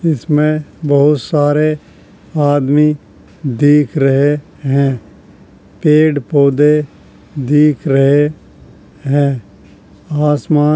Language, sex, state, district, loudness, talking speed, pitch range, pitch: Hindi, male, Uttar Pradesh, Hamirpur, -13 LUFS, 80 wpm, 135-150 Hz, 145 Hz